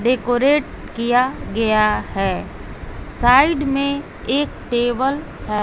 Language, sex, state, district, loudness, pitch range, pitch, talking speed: Hindi, female, Bihar, West Champaran, -18 LUFS, 235-280 Hz, 250 Hz, 95 wpm